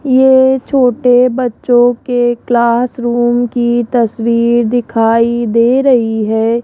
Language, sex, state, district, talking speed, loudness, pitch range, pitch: Hindi, female, Rajasthan, Jaipur, 110 wpm, -11 LUFS, 235-250 Hz, 240 Hz